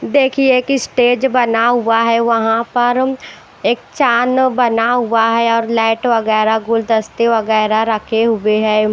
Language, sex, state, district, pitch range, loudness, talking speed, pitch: Hindi, female, Maharashtra, Washim, 225-245 Hz, -14 LUFS, 140 wpm, 230 Hz